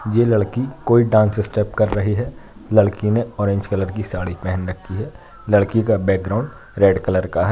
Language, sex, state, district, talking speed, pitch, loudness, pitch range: Hindi, male, Uttar Pradesh, Jyotiba Phule Nagar, 190 wpm, 105 Hz, -19 LUFS, 95-115 Hz